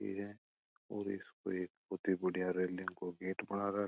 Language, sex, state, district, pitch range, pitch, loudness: Marwari, male, Rajasthan, Churu, 90-100 Hz, 95 Hz, -40 LUFS